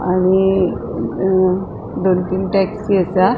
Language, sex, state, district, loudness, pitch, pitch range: Konkani, female, Goa, North and South Goa, -17 LUFS, 190 Hz, 185-195 Hz